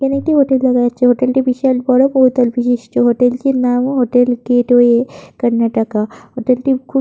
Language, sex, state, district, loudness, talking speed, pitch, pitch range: Bengali, female, West Bengal, Purulia, -14 LUFS, 170 wpm, 250 Hz, 245-265 Hz